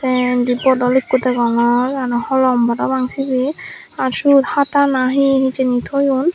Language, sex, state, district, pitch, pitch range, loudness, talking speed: Chakma, female, Tripura, Dhalai, 260 Hz, 250-270 Hz, -16 LUFS, 150 wpm